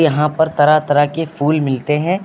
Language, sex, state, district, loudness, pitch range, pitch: Hindi, male, Uttar Pradesh, Lucknow, -15 LUFS, 145-160 Hz, 150 Hz